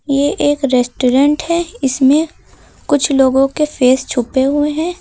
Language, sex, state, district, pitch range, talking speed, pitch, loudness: Hindi, female, Uttar Pradesh, Lucknow, 265-300 Hz, 130 wpm, 275 Hz, -14 LUFS